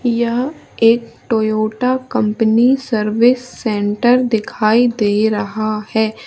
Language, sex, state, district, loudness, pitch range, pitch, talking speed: Hindi, female, Madhya Pradesh, Umaria, -16 LUFS, 215-240 Hz, 225 Hz, 95 wpm